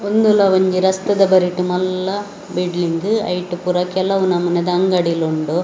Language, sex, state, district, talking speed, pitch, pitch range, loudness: Tulu, female, Karnataka, Dakshina Kannada, 130 wpm, 185 Hz, 175-190 Hz, -17 LUFS